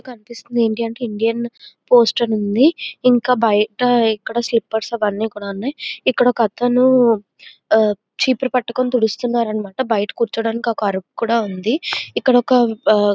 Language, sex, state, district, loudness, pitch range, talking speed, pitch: Telugu, female, Andhra Pradesh, Visakhapatnam, -17 LUFS, 220-245 Hz, 80 wpm, 235 Hz